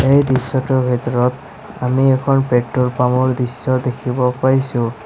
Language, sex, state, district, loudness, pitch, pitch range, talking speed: Assamese, male, Assam, Sonitpur, -17 LUFS, 130 Hz, 125-130 Hz, 120 wpm